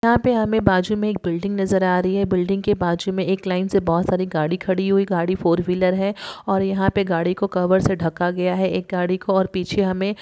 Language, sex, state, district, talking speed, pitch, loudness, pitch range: Hindi, female, Karnataka, Raichur, 245 wpm, 190 Hz, -20 LUFS, 180-195 Hz